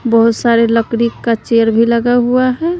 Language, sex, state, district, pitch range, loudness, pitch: Hindi, female, Bihar, West Champaran, 230-245 Hz, -13 LUFS, 235 Hz